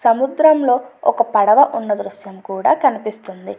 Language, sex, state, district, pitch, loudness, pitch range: Telugu, female, Andhra Pradesh, Anantapur, 235 Hz, -15 LUFS, 205-275 Hz